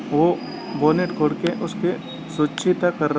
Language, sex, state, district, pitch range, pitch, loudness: Hindi, male, Bihar, Gaya, 150-180 Hz, 165 Hz, -22 LUFS